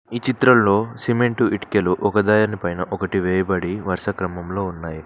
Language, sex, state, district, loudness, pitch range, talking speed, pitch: Telugu, male, Telangana, Mahabubabad, -20 LUFS, 90-110 Hz, 120 wpm, 100 Hz